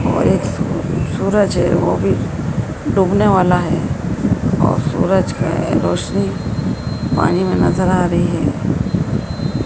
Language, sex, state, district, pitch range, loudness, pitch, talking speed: Hindi, female, Madhya Pradesh, Dhar, 175-195 Hz, -17 LUFS, 185 Hz, 120 wpm